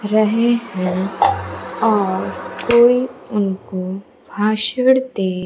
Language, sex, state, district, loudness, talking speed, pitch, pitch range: Hindi, female, Bihar, Kaimur, -18 LUFS, 75 wpm, 210 Hz, 190-235 Hz